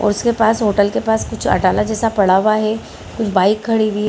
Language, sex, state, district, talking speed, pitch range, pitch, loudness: Hindi, female, Bihar, Lakhisarai, 250 wpm, 205-220 Hz, 215 Hz, -16 LUFS